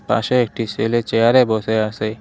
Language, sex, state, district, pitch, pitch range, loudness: Bengali, male, West Bengal, Cooch Behar, 115 Hz, 110-120 Hz, -18 LUFS